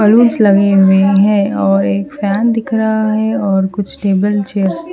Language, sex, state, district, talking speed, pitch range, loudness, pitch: Hindi, female, Haryana, Charkhi Dadri, 135 wpm, 195-215 Hz, -12 LUFS, 200 Hz